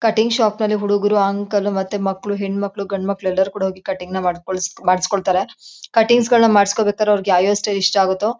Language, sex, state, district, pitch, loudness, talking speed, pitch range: Kannada, female, Karnataka, Chamarajanagar, 200 Hz, -18 LUFS, 200 wpm, 190-210 Hz